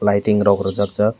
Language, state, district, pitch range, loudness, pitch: Kokborok, Tripura, West Tripura, 100-105 Hz, -18 LUFS, 100 Hz